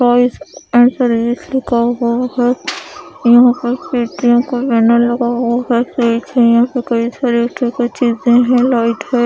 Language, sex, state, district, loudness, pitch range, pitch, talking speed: Hindi, female, Odisha, Khordha, -14 LUFS, 235-250 Hz, 245 Hz, 60 wpm